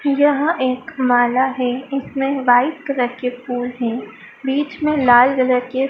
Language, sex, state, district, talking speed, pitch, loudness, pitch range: Hindi, female, Madhya Pradesh, Dhar, 150 wpm, 255 Hz, -18 LUFS, 245-275 Hz